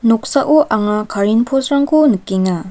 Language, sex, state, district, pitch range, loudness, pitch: Garo, female, Meghalaya, West Garo Hills, 205-280 Hz, -14 LUFS, 225 Hz